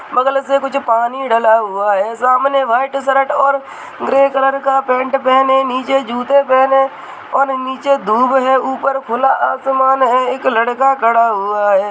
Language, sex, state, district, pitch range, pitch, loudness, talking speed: Hindi, male, Rajasthan, Nagaur, 250-270 Hz, 265 Hz, -14 LUFS, 160 wpm